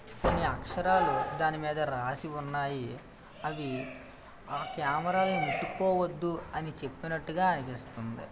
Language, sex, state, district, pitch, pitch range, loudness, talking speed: Telugu, male, Andhra Pradesh, Visakhapatnam, 150 Hz, 135-170 Hz, -32 LUFS, 100 wpm